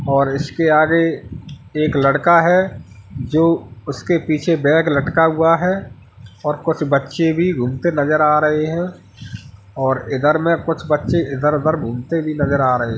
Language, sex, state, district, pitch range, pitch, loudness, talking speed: Hindi, male, Uttar Pradesh, Hamirpur, 135-165 Hz, 150 Hz, -17 LUFS, 155 wpm